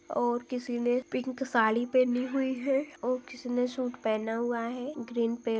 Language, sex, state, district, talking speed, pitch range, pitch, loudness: Hindi, female, Chhattisgarh, Balrampur, 180 wpm, 235-260 Hz, 245 Hz, -30 LUFS